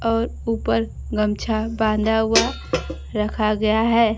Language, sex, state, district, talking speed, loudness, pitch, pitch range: Hindi, female, Bihar, Kaimur, 115 wpm, -21 LUFS, 220 Hz, 215-225 Hz